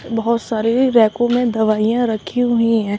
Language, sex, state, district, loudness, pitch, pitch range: Hindi, female, Uttar Pradesh, Shamli, -16 LUFS, 230 Hz, 220-240 Hz